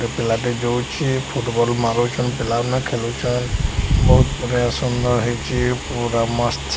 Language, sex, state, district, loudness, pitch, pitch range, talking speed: Odia, male, Odisha, Sambalpur, -20 LUFS, 120 Hz, 120-125 Hz, 125 wpm